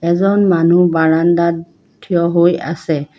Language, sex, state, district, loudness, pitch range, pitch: Assamese, female, Assam, Kamrup Metropolitan, -14 LUFS, 165-175 Hz, 170 Hz